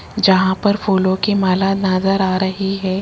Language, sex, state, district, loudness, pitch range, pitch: Hindi, female, Rajasthan, Jaipur, -16 LUFS, 190-195 Hz, 195 Hz